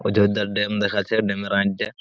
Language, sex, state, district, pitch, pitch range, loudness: Bengali, male, West Bengal, Purulia, 100 Hz, 100-105 Hz, -22 LUFS